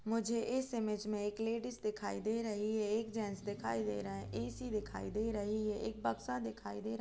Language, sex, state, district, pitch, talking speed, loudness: Hindi, female, Uttar Pradesh, Jalaun, 210 Hz, 230 wpm, -39 LUFS